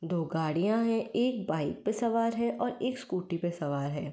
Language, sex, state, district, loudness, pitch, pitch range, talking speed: Hindi, female, Uttar Pradesh, Varanasi, -31 LUFS, 185 Hz, 160-230 Hz, 205 wpm